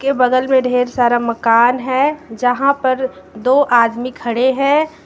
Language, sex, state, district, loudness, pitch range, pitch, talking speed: Hindi, female, Jharkhand, Garhwa, -15 LUFS, 240-270 Hz, 255 Hz, 140 wpm